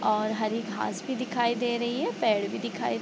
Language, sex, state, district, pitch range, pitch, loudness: Hindi, female, Bihar, Sitamarhi, 210-240 Hz, 225 Hz, -28 LUFS